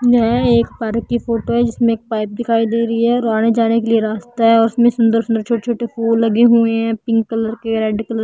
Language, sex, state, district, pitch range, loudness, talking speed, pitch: Hindi, female, Bihar, Patna, 225-235 Hz, -16 LUFS, 235 wpm, 230 Hz